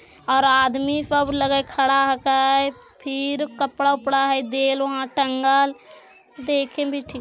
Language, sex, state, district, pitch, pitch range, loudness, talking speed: Magahi, female, Bihar, Jamui, 275 Hz, 270-280 Hz, -20 LUFS, 140 wpm